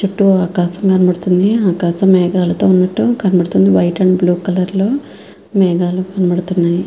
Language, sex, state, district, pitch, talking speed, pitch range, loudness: Telugu, female, Andhra Pradesh, Visakhapatnam, 185 Hz, 140 wpm, 175-190 Hz, -13 LUFS